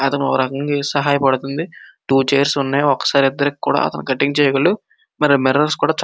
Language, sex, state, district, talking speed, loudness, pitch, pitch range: Telugu, male, Andhra Pradesh, Srikakulam, 180 wpm, -17 LUFS, 140 Hz, 135-145 Hz